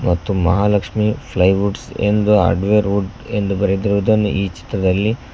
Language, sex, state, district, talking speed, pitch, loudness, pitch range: Kannada, male, Karnataka, Koppal, 135 wpm, 100 Hz, -17 LUFS, 95-105 Hz